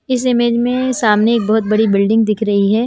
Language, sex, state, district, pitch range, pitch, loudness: Hindi, female, Himachal Pradesh, Shimla, 215-240 Hz, 220 Hz, -14 LUFS